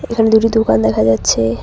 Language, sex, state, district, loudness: Bengali, female, West Bengal, Cooch Behar, -13 LUFS